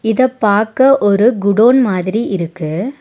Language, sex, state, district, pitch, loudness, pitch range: Tamil, female, Tamil Nadu, Nilgiris, 220 Hz, -13 LUFS, 200-255 Hz